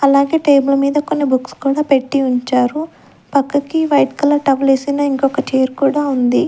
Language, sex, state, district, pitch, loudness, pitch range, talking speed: Telugu, female, Andhra Pradesh, Sri Satya Sai, 275 Hz, -15 LUFS, 270-290 Hz, 155 wpm